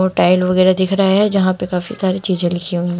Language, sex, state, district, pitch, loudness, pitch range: Hindi, female, Uttar Pradesh, Shamli, 185 Hz, -15 LUFS, 180-190 Hz